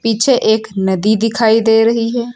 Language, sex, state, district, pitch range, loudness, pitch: Hindi, female, Uttar Pradesh, Lucknow, 220-230 Hz, -13 LUFS, 225 Hz